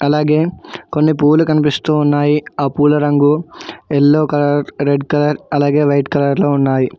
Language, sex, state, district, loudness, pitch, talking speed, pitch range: Telugu, male, Telangana, Hyderabad, -14 LUFS, 145 Hz, 145 wpm, 145-150 Hz